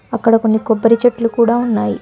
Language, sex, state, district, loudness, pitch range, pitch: Telugu, female, Telangana, Hyderabad, -14 LUFS, 225-235 Hz, 230 Hz